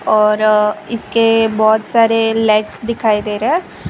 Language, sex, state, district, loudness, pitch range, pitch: Hindi, female, Gujarat, Valsad, -14 LUFS, 215-225 Hz, 220 Hz